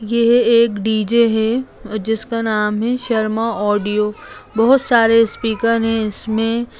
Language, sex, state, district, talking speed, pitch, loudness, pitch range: Hindi, female, Bihar, Jamui, 125 wpm, 225 Hz, -16 LUFS, 215-235 Hz